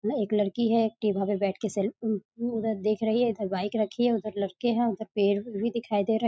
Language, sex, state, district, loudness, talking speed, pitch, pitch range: Hindi, female, Bihar, East Champaran, -28 LUFS, 270 wpm, 215 Hz, 205-230 Hz